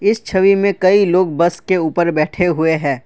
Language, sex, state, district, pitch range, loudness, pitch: Hindi, male, Assam, Kamrup Metropolitan, 160-195 Hz, -15 LUFS, 180 Hz